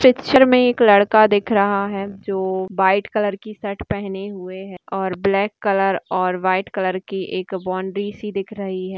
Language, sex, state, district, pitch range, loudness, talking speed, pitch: Hindi, female, Rajasthan, Nagaur, 190-205 Hz, -19 LUFS, 185 wpm, 195 Hz